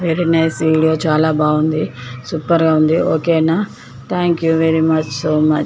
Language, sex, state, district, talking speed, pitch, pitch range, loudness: Telugu, female, Andhra Pradesh, Chittoor, 180 wpm, 160 Hz, 155-165 Hz, -15 LUFS